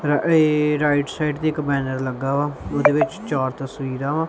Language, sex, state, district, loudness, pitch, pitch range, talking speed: Punjabi, male, Punjab, Kapurthala, -21 LUFS, 145 Hz, 135-150 Hz, 195 wpm